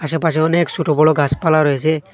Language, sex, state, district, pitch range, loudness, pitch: Bengali, male, Assam, Hailakandi, 150-160 Hz, -15 LUFS, 155 Hz